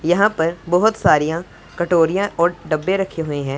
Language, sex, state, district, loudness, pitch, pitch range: Hindi, female, Punjab, Pathankot, -18 LUFS, 170 Hz, 160-180 Hz